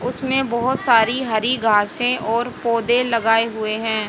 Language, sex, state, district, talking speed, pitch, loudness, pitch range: Hindi, female, Haryana, Jhajjar, 145 wpm, 235 Hz, -18 LUFS, 225-250 Hz